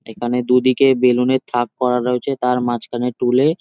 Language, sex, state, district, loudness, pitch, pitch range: Bengali, male, West Bengal, Jhargram, -17 LUFS, 125 Hz, 125-130 Hz